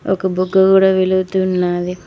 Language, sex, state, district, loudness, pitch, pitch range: Telugu, female, Telangana, Mahabubabad, -15 LUFS, 185 Hz, 180-190 Hz